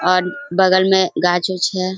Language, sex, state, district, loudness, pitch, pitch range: Hindi, female, Bihar, Jamui, -16 LUFS, 185 Hz, 180-185 Hz